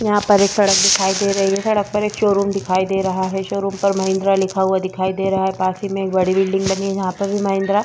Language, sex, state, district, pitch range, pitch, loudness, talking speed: Hindi, female, Bihar, Vaishali, 190-200 Hz, 195 Hz, -17 LUFS, 290 wpm